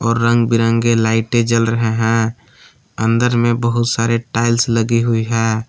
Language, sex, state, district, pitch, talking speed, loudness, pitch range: Hindi, male, Jharkhand, Palamu, 115 Hz, 160 wpm, -16 LUFS, 115-120 Hz